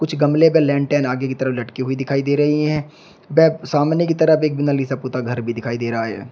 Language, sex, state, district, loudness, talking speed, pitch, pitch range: Hindi, male, Uttar Pradesh, Shamli, -18 LUFS, 255 wpm, 140 Hz, 130-155 Hz